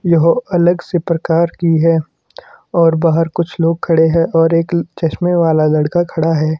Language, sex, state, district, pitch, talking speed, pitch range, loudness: Hindi, male, Himachal Pradesh, Shimla, 165 Hz, 175 wpm, 165-175 Hz, -14 LUFS